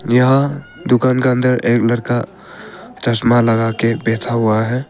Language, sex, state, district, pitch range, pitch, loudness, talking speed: Hindi, male, Arunachal Pradesh, Papum Pare, 115-125 Hz, 120 Hz, -15 LUFS, 145 wpm